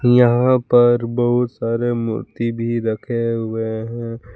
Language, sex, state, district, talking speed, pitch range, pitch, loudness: Hindi, male, Jharkhand, Palamu, 125 wpm, 115-120 Hz, 115 Hz, -18 LUFS